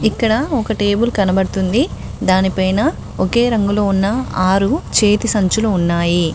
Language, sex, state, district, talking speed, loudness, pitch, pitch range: Telugu, female, Telangana, Mahabubabad, 125 wpm, -16 LUFS, 205 Hz, 190-225 Hz